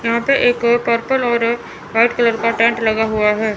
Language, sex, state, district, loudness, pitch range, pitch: Hindi, female, Chandigarh, Chandigarh, -16 LUFS, 225-235 Hz, 230 Hz